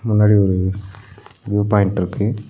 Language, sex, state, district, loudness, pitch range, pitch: Tamil, male, Tamil Nadu, Nilgiris, -17 LUFS, 95-105 Hz, 105 Hz